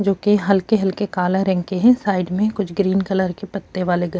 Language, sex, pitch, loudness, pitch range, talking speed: Urdu, female, 195 Hz, -19 LUFS, 185-205 Hz, 215 wpm